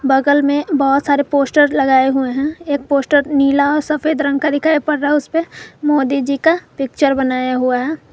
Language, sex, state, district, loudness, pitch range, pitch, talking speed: Hindi, female, Jharkhand, Garhwa, -15 LUFS, 275-295 Hz, 285 Hz, 190 wpm